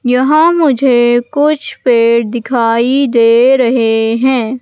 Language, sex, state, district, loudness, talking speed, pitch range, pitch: Hindi, female, Madhya Pradesh, Katni, -11 LUFS, 105 wpm, 235-265 Hz, 245 Hz